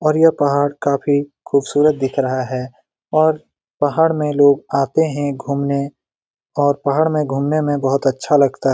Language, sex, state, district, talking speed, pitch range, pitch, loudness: Hindi, male, Bihar, Lakhisarai, 160 wpm, 140-150 Hz, 145 Hz, -17 LUFS